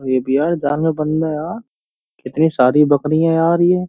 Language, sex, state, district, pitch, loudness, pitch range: Hindi, male, Uttar Pradesh, Jyotiba Phule Nagar, 155 Hz, -16 LUFS, 145-165 Hz